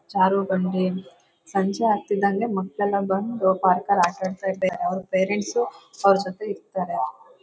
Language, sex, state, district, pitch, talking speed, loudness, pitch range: Kannada, female, Karnataka, Shimoga, 190 Hz, 115 wpm, -23 LUFS, 185-200 Hz